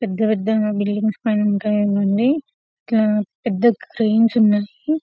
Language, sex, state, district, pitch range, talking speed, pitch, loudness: Telugu, female, Telangana, Karimnagar, 205-230 Hz, 130 wpm, 215 Hz, -19 LUFS